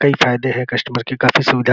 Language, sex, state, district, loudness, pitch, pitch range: Hindi, male, Uttar Pradesh, Gorakhpur, -16 LUFS, 125 Hz, 125-135 Hz